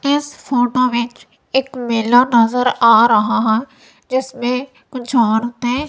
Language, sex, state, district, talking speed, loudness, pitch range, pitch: Hindi, female, Punjab, Kapurthala, 120 wpm, -16 LUFS, 235-260 Hz, 245 Hz